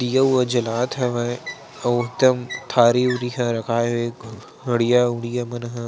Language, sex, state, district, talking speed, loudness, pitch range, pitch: Chhattisgarhi, male, Chhattisgarh, Sarguja, 165 wpm, -21 LUFS, 120-125 Hz, 120 Hz